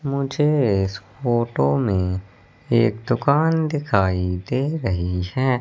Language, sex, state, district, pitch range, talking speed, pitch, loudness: Hindi, male, Madhya Pradesh, Katni, 95-140 Hz, 105 wpm, 120 Hz, -21 LUFS